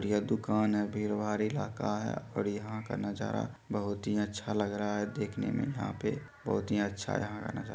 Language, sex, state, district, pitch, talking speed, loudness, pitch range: Angika, male, Bihar, Supaul, 105 Hz, 210 wpm, -34 LUFS, 105-110 Hz